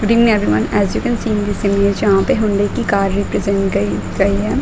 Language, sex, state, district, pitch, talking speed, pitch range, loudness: Hindi, female, Uttar Pradesh, Muzaffarnagar, 200 Hz, 220 wpm, 195-215 Hz, -16 LUFS